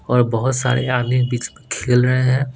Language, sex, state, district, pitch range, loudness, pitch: Hindi, male, Bihar, Patna, 125-130 Hz, -18 LUFS, 125 Hz